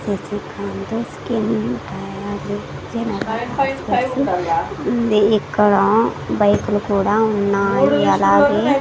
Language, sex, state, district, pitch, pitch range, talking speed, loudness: Telugu, female, Andhra Pradesh, Sri Satya Sai, 205 Hz, 195-225 Hz, 90 wpm, -18 LUFS